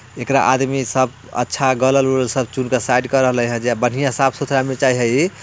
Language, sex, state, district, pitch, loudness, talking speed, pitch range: Bhojpuri, male, Bihar, Muzaffarpur, 130 Hz, -17 LUFS, 200 wpm, 125-135 Hz